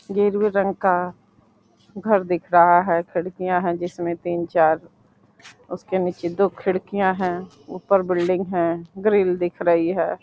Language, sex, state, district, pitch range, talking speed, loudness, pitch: Hindi, female, Uttar Pradesh, Deoria, 175-195 Hz, 135 wpm, -21 LUFS, 180 Hz